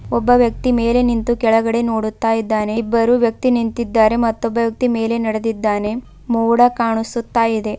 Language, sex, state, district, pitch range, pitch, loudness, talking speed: Kannada, female, Karnataka, Bidar, 225-235 Hz, 230 Hz, -17 LUFS, 130 wpm